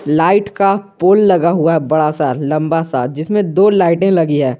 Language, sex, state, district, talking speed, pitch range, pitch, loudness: Hindi, male, Jharkhand, Garhwa, 185 wpm, 155-195 Hz, 165 Hz, -13 LUFS